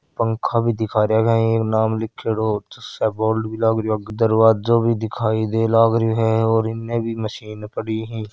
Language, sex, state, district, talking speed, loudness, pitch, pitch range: Hindi, male, Rajasthan, Churu, 210 wpm, -20 LUFS, 110 Hz, 110-115 Hz